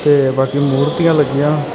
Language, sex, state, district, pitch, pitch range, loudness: Punjabi, male, Karnataka, Bangalore, 145 Hz, 140-150 Hz, -14 LUFS